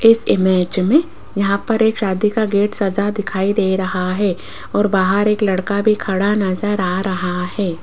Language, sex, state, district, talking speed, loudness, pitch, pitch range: Hindi, female, Rajasthan, Jaipur, 185 wpm, -17 LUFS, 200 Hz, 190-210 Hz